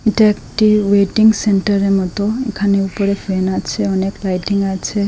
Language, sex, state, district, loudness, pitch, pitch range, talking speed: Bengali, female, Assam, Hailakandi, -16 LUFS, 200 Hz, 195-210 Hz, 140 wpm